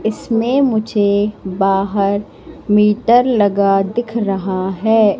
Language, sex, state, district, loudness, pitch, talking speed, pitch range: Hindi, female, Madhya Pradesh, Katni, -15 LUFS, 205 Hz, 90 wpm, 195-225 Hz